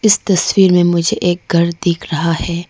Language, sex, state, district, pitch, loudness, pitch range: Hindi, female, Arunachal Pradesh, Lower Dibang Valley, 175 Hz, -14 LUFS, 170-190 Hz